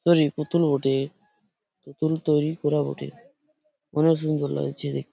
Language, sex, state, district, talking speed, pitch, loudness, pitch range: Bengali, male, West Bengal, Purulia, 95 wpm, 155 Hz, -24 LUFS, 140-185 Hz